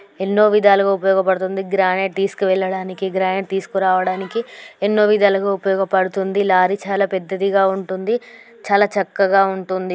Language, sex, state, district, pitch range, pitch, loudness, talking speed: Telugu, female, Telangana, Karimnagar, 190-200 Hz, 195 Hz, -18 LUFS, 110 wpm